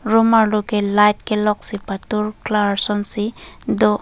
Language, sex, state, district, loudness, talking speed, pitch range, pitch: Karbi, female, Assam, Karbi Anglong, -18 LUFS, 150 wpm, 205-215 Hz, 210 Hz